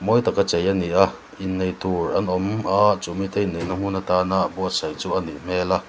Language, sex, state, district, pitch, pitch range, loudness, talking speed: Mizo, male, Mizoram, Aizawl, 95 Hz, 90-100 Hz, -22 LUFS, 215 wpm